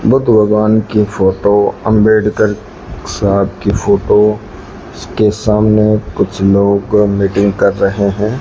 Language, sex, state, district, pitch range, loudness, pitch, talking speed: Hindi, male, Rajasthan, Bikaner, 100-105 Hz, -12 LUFS, 105 Hz, 115 wpm